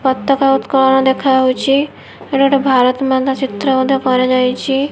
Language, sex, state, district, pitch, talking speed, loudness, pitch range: Odia, female, Odisha, Nuapada, 265 Hz, 110 wpm, -13 LUFS, 260-270 Hz